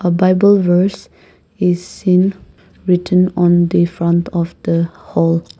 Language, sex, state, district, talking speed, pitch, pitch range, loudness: English, female, Nagaland, Kohima, 130 wpm, 175 Hz, 170-185 Hz, -15 LUFS